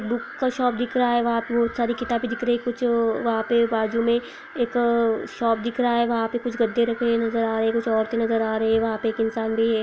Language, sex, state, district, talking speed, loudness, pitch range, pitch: Hindi, female, Chhattisgarh, Bilaspur, 280 wpm, -23 LUFS, 225-240 Hz, 230 Hz